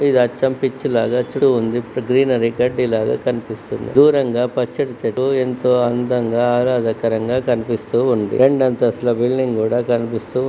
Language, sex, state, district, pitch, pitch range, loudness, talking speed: Telugu, male, Andhra Pradesh, Srikakulam, 125 Hz, 115-130 Hz, -18 LUFS, 115 wpm